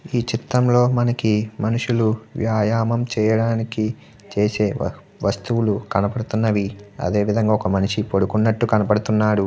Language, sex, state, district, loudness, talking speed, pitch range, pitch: Telugu, male, Andhra Pradesh, Guntur, -20 LUFS, 100 wpm, 105-115 Hz, 110 Hz